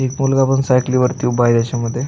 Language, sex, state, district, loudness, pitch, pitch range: Marathi, male, Maharashtra, Aurangabad, -16 LUFS, 125 Hz, 120-135 Hz